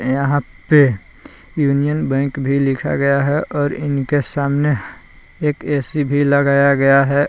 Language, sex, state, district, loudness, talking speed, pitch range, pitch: Hindi, male, Jharkhand, Palamu, -17 LUFS, 140 wpm, 140-145 Hz, 140 Hz